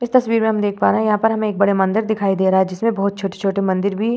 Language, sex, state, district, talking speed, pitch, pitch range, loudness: Hindi, female, Uttar Pradesh, Varanasi, 345 wpm, 205 Hz, 195-220 Hz, -18 LUFS